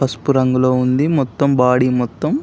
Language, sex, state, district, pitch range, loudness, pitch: Telugu, male, Telangana, Karimnagar, 125-140 Hz, -16 LUFS, 130 Hz